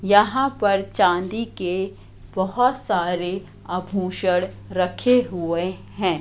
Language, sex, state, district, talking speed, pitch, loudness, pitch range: Hindi, female, Madhya Pradesh, Katni, 95 wpm, 185 Hz, -22 LUFS, 180-205 Hz